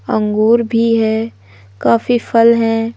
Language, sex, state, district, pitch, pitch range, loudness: Hindi, female, Madhya Pradesh, Umaria, 225 Hz, 215-230 Hz, -14 LUFS